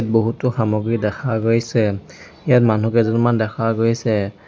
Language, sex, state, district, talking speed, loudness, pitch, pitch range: Assamese, male, Assam, Sonitpur, 120 wpm, -18 LUFS, 115 Hz, 110-115 Hz